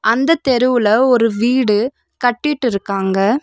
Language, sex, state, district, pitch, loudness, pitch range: Tamil, female, Tamil Nadu, Nilgiris, 245 Hz, -15 LUFS, 215-260 Hz